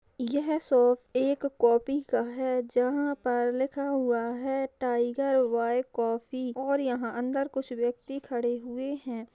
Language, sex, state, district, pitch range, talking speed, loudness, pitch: Hindi, female, Maharashtra, Nagpur, 240-275 Hz, 140 wpm, -29 LUFS, 255 Hz